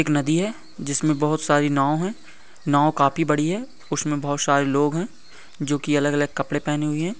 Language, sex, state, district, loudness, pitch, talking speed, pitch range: Hindi, male, Bihar, Begusarai, -22 LUFS, 150 Hz, 210 wpm, 145-155 Hz